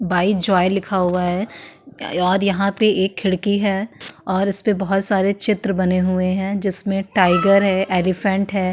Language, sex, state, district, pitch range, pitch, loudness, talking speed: Hindi, female, Uttarakhand, Tehri Garhwal, 185-200 Hz, 195 Hz, -18 LUFS, 165 wpm